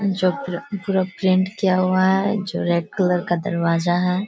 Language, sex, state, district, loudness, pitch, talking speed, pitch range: Hindi, female, Bihar, Kishanganj, -20 LUFS, 185 Hz, 180 wpm, 175-190 Hz